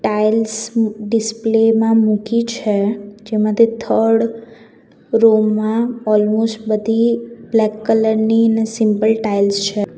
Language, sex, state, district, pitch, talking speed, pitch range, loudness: Gujarati, female, Gujarat, Valsad, 220 Hz, 110 wpm, 215-225 Hz, -16 LUFS